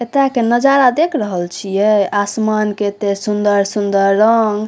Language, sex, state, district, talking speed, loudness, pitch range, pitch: Maithili, female, Bihar, Saharsa, 140 wpm, -15 LUFS, 200-235 Hz, 210 Hz